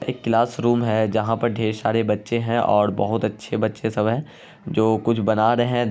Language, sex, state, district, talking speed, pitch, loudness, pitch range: Hindi, male, Bihar, Araria, 205 wpm, 110 Hz, -21 LUFS, 110-120 Hz